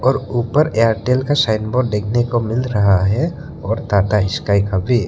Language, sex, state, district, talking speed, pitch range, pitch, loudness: Hindi, male, Arunachal Pradesh, Lower Dibang Valley, 190 wpm, 105-125 Hz, 115 Hz, -17 LUFS